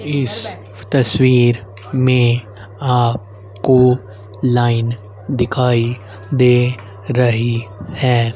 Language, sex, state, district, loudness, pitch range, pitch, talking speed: Hindi, male, Haryana, Rohtak, -16 LUFS, 105-125 Hz, 120 Hz, 70 wpm